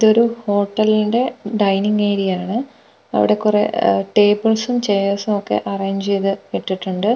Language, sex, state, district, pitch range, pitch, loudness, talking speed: Malayalam, female, Kerala, Wayanad, 195-220 Hz, 205 Hz, -18 LUFS, 125 wpm